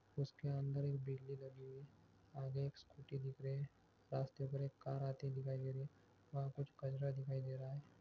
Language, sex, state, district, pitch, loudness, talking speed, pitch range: Hindi, male, Jharkhand, Jamtara, 135 Hz, -47 LUFS, 210 wpm, 135-140 Hz